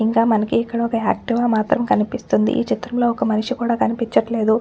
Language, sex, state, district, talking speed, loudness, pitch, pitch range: Telugu, female, Telangana, Nalgonda, 155 wpm, -19 LUFS, 230 Hz, 220-235 Hz